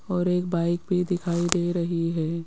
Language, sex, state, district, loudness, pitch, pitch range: Hindi, female, Rajasthan, Jaipur, -25 LUFS, 175 Hz, 170-180 Hz